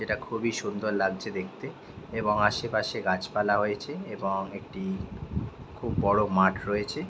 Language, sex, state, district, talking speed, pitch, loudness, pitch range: Bengali, male, West Bengal, Jhargram, 135 wpm, 105 Hz, -29 LUFS, 95-115 Hz